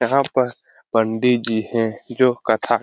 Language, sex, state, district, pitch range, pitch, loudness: Hindi, male, Bihar, Lakhisarai, 110-125 Hz, 120 Hz, -20 LUFS